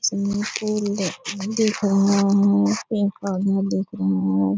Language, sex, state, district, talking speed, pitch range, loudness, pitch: Hindi, female, Bihar, Purnia, 145 wpm, 185-205 Hz, -21 LUFS, 200 Hz